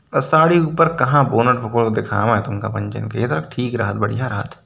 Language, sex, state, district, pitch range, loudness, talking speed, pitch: Hindi, male, Uttar Pradesh, Varanasi, 110-135 Hz, -18 LUFS, 170 wpm, 120 Hz